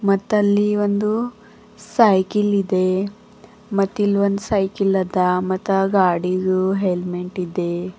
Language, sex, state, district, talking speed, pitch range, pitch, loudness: Kannada, female, Karnataka, Bidar, 90 wpm, 185-210 Hz, 195 Hz, -19 LUFS